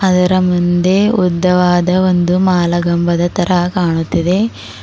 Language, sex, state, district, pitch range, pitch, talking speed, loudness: Kannada, female, Karnataka, Bidar, 175-185 Hz, 180 Hz, 85 wpm, -13 LUFS